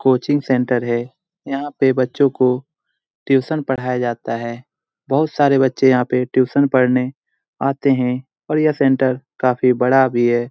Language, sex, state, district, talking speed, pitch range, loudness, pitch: Hindi, male, Bihar, Jamui, 155 wpm, 125-140 Hz, -17 LUFS, 130 Hz